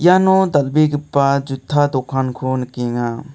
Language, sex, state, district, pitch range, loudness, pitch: Garo, male, Meghalaya, South Garo Hills, 130-150 Hz, -17 LUFS, 140 Hz